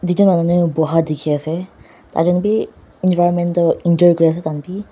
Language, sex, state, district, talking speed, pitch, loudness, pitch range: Nagamese, female, Nagaland, Dimapur, 160 wpm, 175 Hz, -16 LUFS, 160-180 Hz